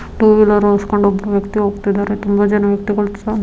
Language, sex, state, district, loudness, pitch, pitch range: Kannada, female, Karnataka, Dharwad, -15 LUFS, 205 Hz, 200-210 Hz